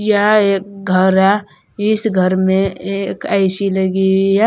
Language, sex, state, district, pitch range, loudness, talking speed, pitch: Hindi, female, Uttar Pradesh, Saharanpur, 190-205 Hz, -15 LUFS, 160 wpm, 195 Hz